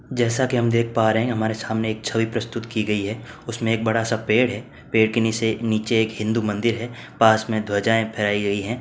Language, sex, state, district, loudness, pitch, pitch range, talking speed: Hindi, male, Uttar Pradesh, Varanasi, -22 LUFS, 115 Hz, 110-115 Hz, 230 wpm